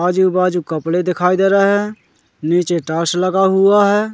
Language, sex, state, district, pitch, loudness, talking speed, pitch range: Hindi, male, Madhya Pradesh, Katni, 185 Hz, -15 LUFS, 175 wpm, 175-195 Hz